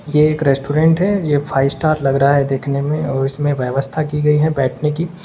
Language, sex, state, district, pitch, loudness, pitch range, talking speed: Hindi, male, Uttar Pradesh, Saharanpur, 145 Hz, -16 LUFS, 135-155 Hz, 230 wpm